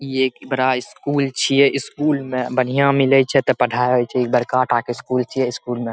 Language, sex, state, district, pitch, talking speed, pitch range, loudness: Maithili, male, Bihar, Saharsa, 130 Hz, 200 wpm, 125-135 Hz, -18 LUFS